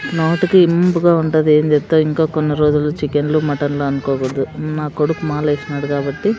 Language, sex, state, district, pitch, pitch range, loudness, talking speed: Telugu, female, Andhra Pradesh, Sri Satya Sai, 150 Hz, 145-160 Hz, -16 LUFS, 160 wpm